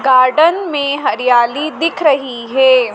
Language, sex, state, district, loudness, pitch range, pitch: Hindi, female, Madhya Pradesh, Dhar, -13 LUFS, 255-305 Hz, 270 Hz